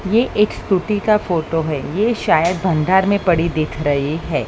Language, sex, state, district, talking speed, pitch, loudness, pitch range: Hindi, female, Maharashtra, Mumbai Suburban, 175 wpm, 175 Hz, -17 LUFS, 155-200 Hz